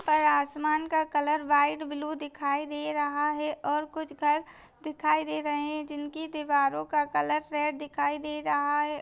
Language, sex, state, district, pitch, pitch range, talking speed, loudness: Hindi, female, Bihar, Madhepura, 300 Hz, 290-305 Hz, 165 wpm, -28 LUFS